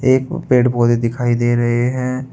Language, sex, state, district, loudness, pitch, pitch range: Hindi, male, Uttar Pradesh, Saharanpur, -16 LUFS, 125 Hz, 120-130 Hz